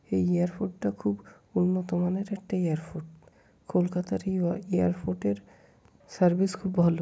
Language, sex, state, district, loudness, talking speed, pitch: Bengali, male, West Bengal, Kolkata, -29 LUFS, 120 wpm, 175 Hz